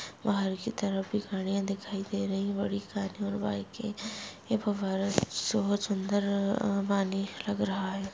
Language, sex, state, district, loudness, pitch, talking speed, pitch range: Hindi, female, Bihar, Madhepura, -32 LUFS, 200 Hz, 160 wpm, 195-205 Hz